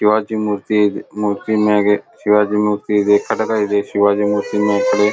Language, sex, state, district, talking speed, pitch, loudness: Kannada, male, Karnataka, Dharwad, 150 wpm, 105 Hz, -16 LUFS